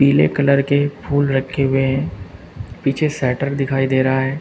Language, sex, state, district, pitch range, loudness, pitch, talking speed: Hindi, male, Uttar Pradesh, Saharanpur, 130-140 Hz, -18 LUFS, 135 Hz, 175 wpm